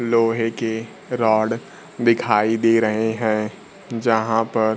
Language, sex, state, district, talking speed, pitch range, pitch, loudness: Hindi, male, Bihar, Kaimur, 115 wpm, 110-115 Hz, 115 Hz, -20 LUFS